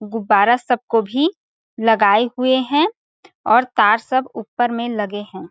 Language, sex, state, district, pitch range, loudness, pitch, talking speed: Hindi, female, Chhattisgarh, Balrampur, 215-255 Hz, -17 LUFS, 235 Hz, 165 wpm